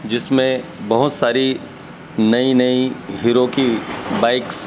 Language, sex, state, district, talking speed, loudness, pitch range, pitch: Hindi, male, Madhya Pradesh, Dhar, 115 wpm, -17 LUFS, 115-130 Hz, 125 Hz